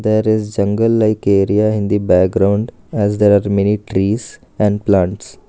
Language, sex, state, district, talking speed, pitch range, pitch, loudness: English, male, Karnataka, Bangalore, 155 wpm, 100-110 Hz, 105 Hz, -15 LUFS